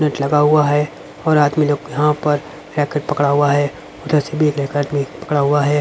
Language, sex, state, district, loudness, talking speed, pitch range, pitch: Hindi, male, Haryana, Rohtak, -17 LUFS, 195 wpm, 145-150 Hz, 145 Hz